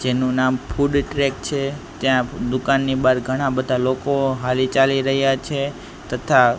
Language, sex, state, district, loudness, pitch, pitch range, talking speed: Gujarati, male, Gujarat, Gandhinagar, -20 LUFS, 135 Hz, 130-140 Hz, 145 wpm